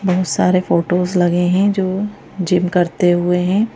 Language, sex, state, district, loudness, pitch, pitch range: Hindi, female, Madhya Pradesh, Bhopal, -16 LUFS, 180 Hz, 180-190 Hz